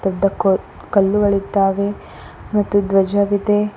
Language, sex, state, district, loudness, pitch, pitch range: Kannada, female, Karnataka, Koppal, -17 LUFS, 200 Hz, 195-205 Hz